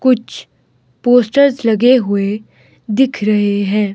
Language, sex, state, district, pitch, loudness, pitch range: Hindi, male, Himachal Pradesh, Shimla, 220 Hz, -14 LUFS, 205-250 Hz